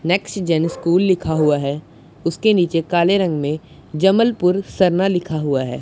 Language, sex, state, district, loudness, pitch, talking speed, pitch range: Hindi, male, Punjab, Pathankot, -18 LUFS, 170 Hz, 165 wpm, 155-185 Hz